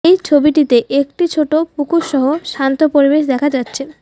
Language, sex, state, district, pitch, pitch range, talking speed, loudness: Bengali, female, West Bengal, Alipurduar, 290 Hz, 275-315 Hz, 135 wpm, -14 LUFS